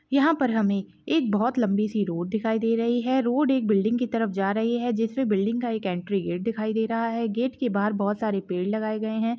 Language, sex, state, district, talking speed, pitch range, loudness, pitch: Hindi, female, Chhattisgarh, Balrampur, 255 wpm, 205-240 Hz, -25 LUFS, 225 Hz